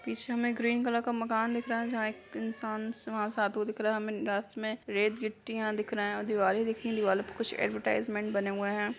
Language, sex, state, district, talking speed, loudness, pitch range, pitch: Hindi, female, Bihar, Madhepura, 265 wpm, -32 LUFS, 205-230 Hz, 215 Hz